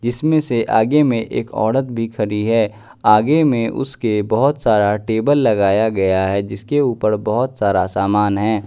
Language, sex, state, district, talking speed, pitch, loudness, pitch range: Hindi, male, Bihar, West Champaran, 165 wpm, 110 Hz, -17 LUFS, 105-130 Hz